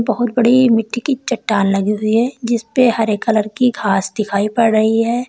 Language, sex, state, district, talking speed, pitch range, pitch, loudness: Hindi, female, Uttar Pradesh, Lalitpur, 205 wpm, 215-240 Hz, 225 Hz, -15 LUFS